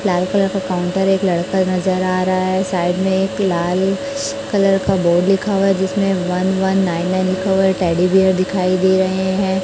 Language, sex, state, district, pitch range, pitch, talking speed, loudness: Hindi, male, Chhattisgarh, Raipur, 185-195 Hz, 190 Hz, 200 wpm, -17 LUFS